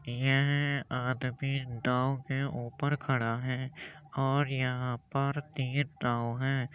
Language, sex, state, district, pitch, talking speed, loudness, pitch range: Hindi, male, Uttar Pradesh, Jyotiba Phule Nagar, 135 Hz, 115 wpm, -32 LUFS, 125-140 Hz